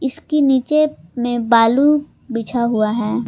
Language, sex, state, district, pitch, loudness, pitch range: Hindi, female, Jharkhand, Palamu, 245 Hz, -17 LUFS, 230-290 Hz